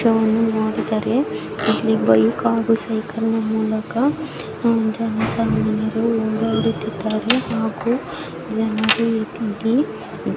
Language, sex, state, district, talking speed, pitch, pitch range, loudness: Kannada, female, Karnataka, Mysore, 70 wpm, 220 Hz, 220-230 Hz, -20 LUFS